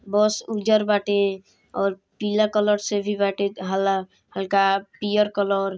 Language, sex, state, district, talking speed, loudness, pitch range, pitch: Bhojpuri, female, Bihar, East Champaran, 145 wpm, -22 LUFS, 195-210 Hz, 200 Hz